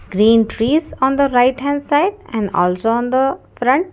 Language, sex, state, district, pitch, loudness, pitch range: English, female, Karnataka, Bangalore, 255 Hz, -16 LUFS, 225-285 Hz